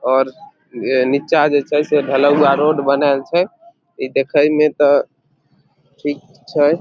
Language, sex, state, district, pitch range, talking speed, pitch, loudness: Maithili, male, Bihar, Samastipur, 140-150 Hz, 140 wpm, 145 Hz, -16 LUFS